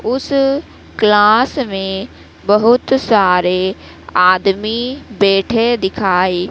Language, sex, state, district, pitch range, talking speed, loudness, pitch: Hindi, female, Madhya Pradesh, Dhar, 190-245 Hz, 75 wpm, -14 LUFS, 210 Hz